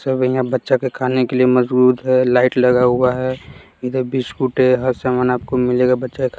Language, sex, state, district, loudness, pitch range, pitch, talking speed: Hindi, male, Bihar, West Champaran, -16 LUFS, 125-130 Hz, 125 Hz, 205 wpm